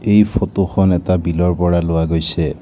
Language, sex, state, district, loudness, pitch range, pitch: Assamese, male, Assam, Kamrup Metropolitan, -16 LUFS, 85-95 Hz, 90 Hz